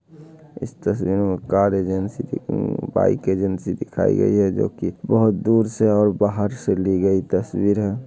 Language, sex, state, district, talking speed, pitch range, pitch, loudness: Hindi, male, Bihar, Madhepura, 170 wpm, 95-110 Hz, 100 Hz, -20 LUFS